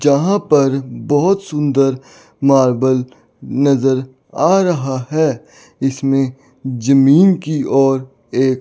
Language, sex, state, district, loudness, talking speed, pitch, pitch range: Hindi, male, Chandigarh, Chandigarh, -15 LUFS, 100 wpm, 135 Hz, 130-150 Hz